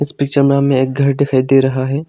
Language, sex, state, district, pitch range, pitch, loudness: Hindi, male, Arunachal Pradesh, Longding, 130-140 Hz, 140 Hz, -14 LUFS